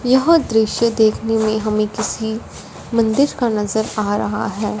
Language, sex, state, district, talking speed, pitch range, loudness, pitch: Hindi, male, Punjab, Fazilka, 150 wpm, 215-235 Hz, -18 LUFS, 220 Hz